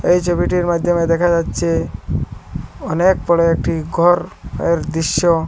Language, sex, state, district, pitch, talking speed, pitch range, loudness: Bengali, male, Assam, Hailakandi, 170 Hz, 120 wpm, 165-175 Hz, -17 LUFS